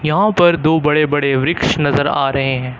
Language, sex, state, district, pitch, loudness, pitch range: Hindi, male, Uttar Pradesh, Lucknow, 145 Hz, -15 LUFS, 135-155 Hz